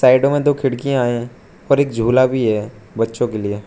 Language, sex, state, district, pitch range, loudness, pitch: Hindi, male, Arunachal Pradesh, Lower Dibang Valley, 115-135 Hz, -17 LUFS, 120 Hz